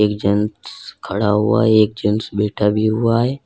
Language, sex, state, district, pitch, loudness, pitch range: Hindi, male, Uttar Pradesh, Lalitpur, 105 Hz, -17 LUFS, 105-110 Hz